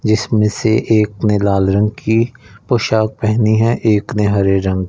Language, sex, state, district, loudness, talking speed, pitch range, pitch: Hindi, male, Punjab, Fazilka, -15 LUFS, 170 wpm, 105-110 Hz, 110 Hz